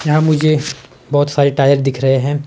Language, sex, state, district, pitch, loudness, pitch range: Hindi, male, Himachal Pradesh, Shimla, 140 Hz, -14 LUFS, 135-150 Hz